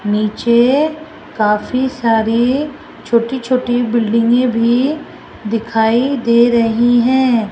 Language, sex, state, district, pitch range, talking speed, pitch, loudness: Hindi, female, Rajasthan, Jaipur, 230-260 Hz, 95 wpm, 240 Hz, -14 LUFS